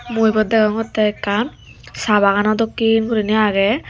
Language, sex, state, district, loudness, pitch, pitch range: Chakma, female, Tripura, Dhalai, -17 LUFS, 215 Hz, 210-225 Hz